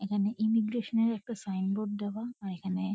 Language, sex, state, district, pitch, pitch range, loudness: Bengali, female, West Bengal, Kolkata, 205 Hz, 200-225 Hz, -32 LUFS